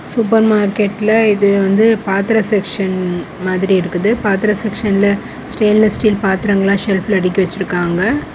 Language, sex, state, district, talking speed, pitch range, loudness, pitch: Tamil, female, Tamil Nadu, Kanyakumari, 110 wpm, 190-215 Hz, -14 LUFS, 200 Hz